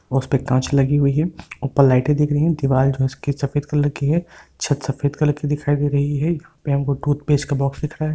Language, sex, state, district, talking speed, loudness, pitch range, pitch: Hindi, male, Uttar Pradesh, Hamirpur, 265 wpm, -20 LUFS, 140-150 Hz, 145 Hz